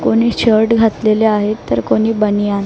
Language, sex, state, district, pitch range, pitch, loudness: Marathi, female, Maharashtra, Mumbai Suburban, 210-225 Hz, 220 Hz, -14 LUFS